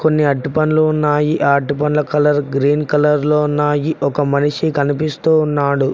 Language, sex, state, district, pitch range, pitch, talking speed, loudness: Telugu, male, Telangana, Mahabubabad, 145-150 Hz, 150 Hz, 140 wpm, -15 LUFS